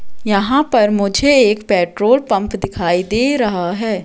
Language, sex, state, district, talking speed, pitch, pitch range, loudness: Hindi, female, Madhya Pradesh, Katni, 150 wpm, 210 Hz, 195-240 Hz, -15 LUFS